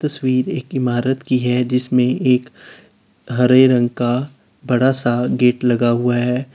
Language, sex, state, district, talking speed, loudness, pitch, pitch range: Hindi, male, Uttar Pradesh, Lalitpur, 145 wpm, -17 LUFS, 125 Hz, 125-130 Hz